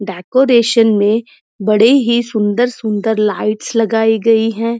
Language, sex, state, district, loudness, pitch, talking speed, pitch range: Hindi, female, Uttar Pradesh, Muzaffarnagar, -13 LUFS, 225 Hz, 125 wpm, 215-235 Hz